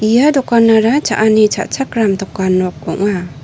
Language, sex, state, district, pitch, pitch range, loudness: Garo, female, Meghalaya, North Garo Hills, 215 Hz, 190-230 Hz, -13 LUFS